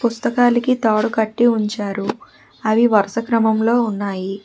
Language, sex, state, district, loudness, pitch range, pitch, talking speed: Telugu, female, Telangana, Hyderabad, -18 LUFS, 205-235 Hz, 220 Hz, 110 wpm